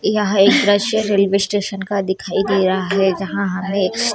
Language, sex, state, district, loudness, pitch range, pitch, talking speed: Chhattisgarhi, female, Chhattisgarh, Korba, -17 LUFS, 195-205 Hz, 195 Hz, 175 wpm